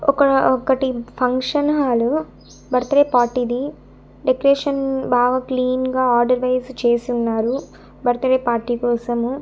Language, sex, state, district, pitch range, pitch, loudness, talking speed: Telugu, female, Andhra Pradesh, Annamaya, 245-270 Hz, 255 Hz, -19 LUFS, 125 wpm